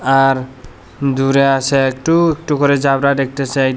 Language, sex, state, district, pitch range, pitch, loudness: Bengali, male, Tripura, Unakoti, 135-140 Hz, 135 Hz, -15 LUFS